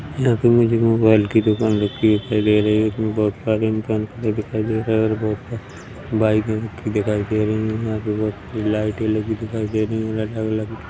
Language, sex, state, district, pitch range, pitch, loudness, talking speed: Hindi, male, Chhattisgarh, Rajnandgaon, 105-110 Hz, 110 Hz, -20 LUFS, 215 wpm